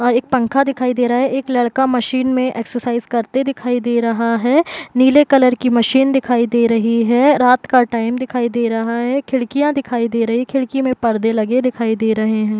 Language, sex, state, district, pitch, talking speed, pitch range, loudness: Hindi, female, Bihar, Gopalganj, 245 Hz, 210 wpm, 235-260 Hz, -16 LUFS